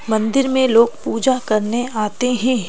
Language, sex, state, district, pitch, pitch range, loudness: Hindi, female, Madhya Pradesh, Bhopal, 240 Hz, 220-255 Hz, -17 LUFS